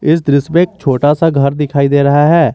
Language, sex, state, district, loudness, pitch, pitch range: Hindi, male, Jharkhand, Garhwa, -11 LUFS, 145 Hz, 140-165 Hz